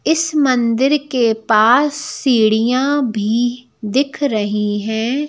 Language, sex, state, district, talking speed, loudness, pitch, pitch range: Hindi, female, Madhya Pradesh, Bhopal, 100 wpm, -16 LUFS, 250 Hz, 220-285 Hz